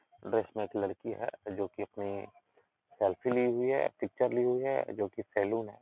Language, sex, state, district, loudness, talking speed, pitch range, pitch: Hindi, male, Uttar Pradesh, Etah, -33 LUFS, 195 wpm, 100-125 Hz, 120 Hz